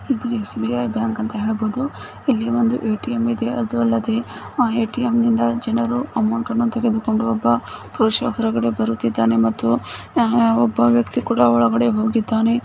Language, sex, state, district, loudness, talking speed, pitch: Kannada, female, Karnataka, Bijapur, -19 LUFS, 135 wpm, 220 Hz